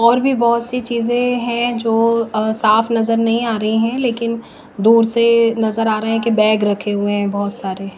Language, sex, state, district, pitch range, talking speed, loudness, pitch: Hindi, female, Himachal Pradesh, Shimla, 215-235 Hz, 205 wpm, -16 LUFS, 230 Hz